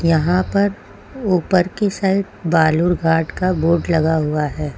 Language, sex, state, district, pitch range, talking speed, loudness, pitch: Hindi, female, Uttar Pradesh, Lucknow, 160-190 Hz, 140 wpm, -18 LUFS, 170 Hz